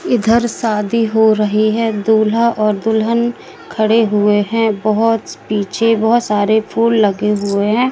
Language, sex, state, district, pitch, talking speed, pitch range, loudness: Hindi, female, Madhya Pradesh, Katni, 220 Hz, 145 wpm, 210-230 Hz, -14 LUFS